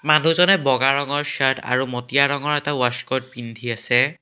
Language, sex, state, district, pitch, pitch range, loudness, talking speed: Assamese, male, Assam, Kamrup Metropolitan, 135 Hz, 125-145 Hz, -20 LUFS, 155 wpm